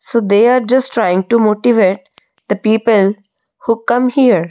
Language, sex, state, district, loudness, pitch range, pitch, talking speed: English, female, Odisha, Malkangiri, -13 LUFS, 200-245 Hz, 225 Hz, 160 wpm